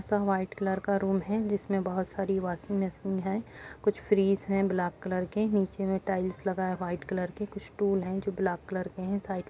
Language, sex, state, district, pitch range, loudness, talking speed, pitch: Hindi, female, Uttarakhand, Uttarkashi, 185-200 Hz, -31 LUFS, 225 wpm, 195 Hz